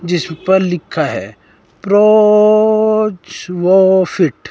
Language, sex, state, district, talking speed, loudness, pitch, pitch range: Hindi, male, Himachal Pradesh, Shimla, 105 wpm, -12 LUFS, 190 Hz, 175-215 Hz